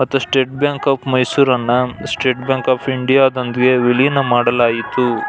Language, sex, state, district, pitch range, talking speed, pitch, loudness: Kannada, male, Karnataka, Belgaum, 125-135 Hz, 145 wpm, 130 Hz, -15 LUFS